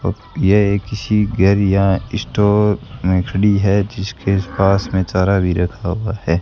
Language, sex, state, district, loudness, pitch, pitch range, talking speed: Hindi, male, Rajasthan, Bikaner, -17 LUFS, 100 Hz, 95-105 Hz, 150 wpm